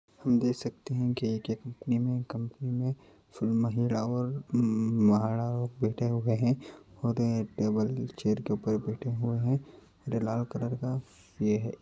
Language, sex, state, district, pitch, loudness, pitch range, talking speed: Hindi, male, Uttar Pradesh, Ghazipur, 120 Hz, -30 LUFS, 110-125 Hz, 145 wpm